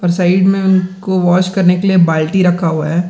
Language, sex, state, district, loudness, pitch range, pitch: Hindi, male, Bihar, Gaya, -12 LUFS, 175-190 Hz, 180 Hz